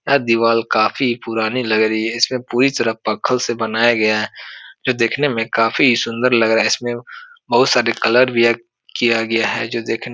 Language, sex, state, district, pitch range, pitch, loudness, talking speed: Hindi, male, Uttar Pradesh, Etah, 115-125 Hz, 115 Hz, -17 LUFS, 205 wpm